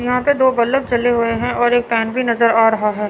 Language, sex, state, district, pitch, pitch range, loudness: Hindi, female, Chandigarh, Chandigarh, 240 Hz, 230-245 Hz, -16 LUFS